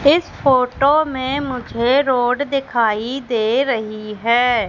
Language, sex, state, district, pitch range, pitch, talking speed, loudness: Hindi, female, Madhya Pradesh, Katni, 235-275 Hz, 255 Hz, 115 wpm, -18 LUFS